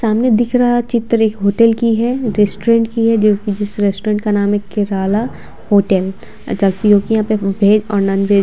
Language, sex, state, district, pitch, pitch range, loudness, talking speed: Hindi, female, Bihar, Vaishali, 210 Hz, 200-230 Hz, -14 LUFS, 205 wpm